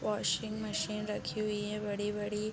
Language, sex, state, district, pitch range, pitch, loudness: Hindi, female, Bihar, East Champaran, 205-215 Hz, 210 Hz, -35 LUFS